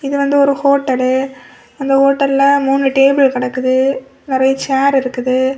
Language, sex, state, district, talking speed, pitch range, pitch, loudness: Tamil, female, Tamil Nadu, Kanyakumari, 130 wpm, 260-275 Hz, 270 Hz, -13 LUFS